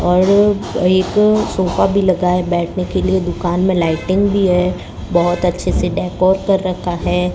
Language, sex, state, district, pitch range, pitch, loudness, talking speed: Hindi, male, Rajasthan, Bikaner, 180-190 Hz, 185 Hz, -15 LUFS, 165 wpm